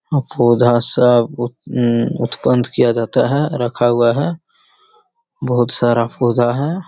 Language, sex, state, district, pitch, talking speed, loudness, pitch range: Hindi, male, Bihar, Jamui, 120 Hz, 120 wpm, -15 LUFS, 120-150 Hz